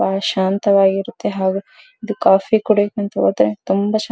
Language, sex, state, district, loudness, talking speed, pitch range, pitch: Kannada, female, Karnataka, Dharwad, -17 LUFS, 145 wpm, 190-210 Hz, 200 Hz